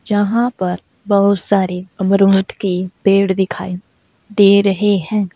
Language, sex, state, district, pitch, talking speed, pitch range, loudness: Hindi, female, Uttar Pradesh, Saharanpur, 195 Hz, 125 wpm, 190-205 Hz, -15 LUFS